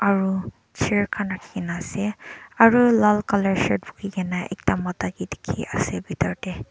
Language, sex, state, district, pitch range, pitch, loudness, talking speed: Nagamese, male, Nagaland, Dimapur, 185-210 Hz, 200 Hz, -23 LUFS, 150 wpm